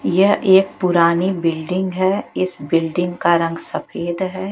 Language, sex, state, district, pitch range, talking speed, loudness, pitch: Hindi, female, Chhattisgarh, Raipur, 170-190 Hz, 145 wpm, -18 LUFS, 180 Hz